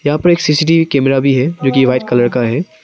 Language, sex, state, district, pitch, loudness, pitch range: Hindi, male, Arunachal Pradesh, Papum Pare, 140 Hz, -12 LUFS, 130-160 Hz